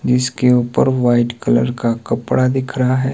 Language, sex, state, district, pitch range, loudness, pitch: Hindi, male, Himachal Pradesh, Shimla, 120-130 Hz, -16 LUFS, 125 Hz